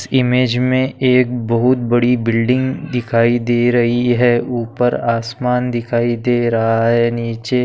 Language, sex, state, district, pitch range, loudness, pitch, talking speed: Hindi, male, Maharashtra, Pune, 115-125 Hz, -16 LUFS, 120 Hz, 150 wpm